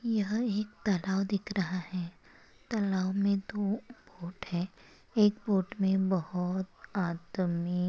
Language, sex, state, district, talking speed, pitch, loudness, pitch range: Hindi, female, Maharashtra, Sindhudurg, 120 wpm, 195 Hz, -32 LUFS, 180-205 Hz